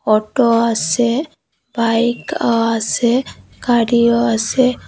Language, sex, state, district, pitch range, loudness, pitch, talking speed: Bengali, female, Assam, Hailakandi, 230-240 Hz, -16 LUFS, 235 Hz, 75 wpm